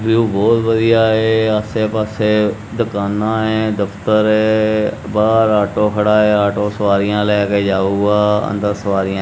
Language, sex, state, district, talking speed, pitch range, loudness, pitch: Punjabi, male, Punjab, Kapurthala, 135 wpm, 105-110 Hz, -15 LUFS, 105 Hz